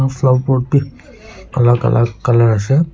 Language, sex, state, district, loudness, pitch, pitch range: Nagamese, male, Nagaland, Kohima, -14 LUFS, 130 Hz, 120-135 Hz